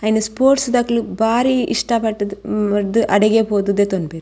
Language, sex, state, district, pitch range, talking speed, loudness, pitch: Tulu, female, Karnataka, Dakshina Kannada, 205-235 Hz, 130 wpm, -17 LUFS, 220 Hz